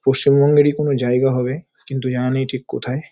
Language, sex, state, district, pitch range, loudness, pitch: Bengali, male, West Bengal, Paschim Medinipur, 130-140 Hz, -18 LUFS, 135 Hz